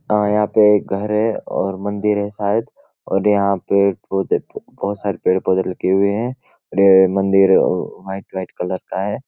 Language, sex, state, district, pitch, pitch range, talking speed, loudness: Hindi, male, Uttarakhand, Uttarkashi, 100 Hz, 95-105 Hz, 160 wpm, -18 LUFS